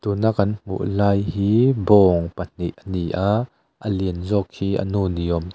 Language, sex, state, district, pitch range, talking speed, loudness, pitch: Mizo, male, Mizoram, Aizawl, 90-100 Hz, 205 wpm, -21 LUFS, 100 Hz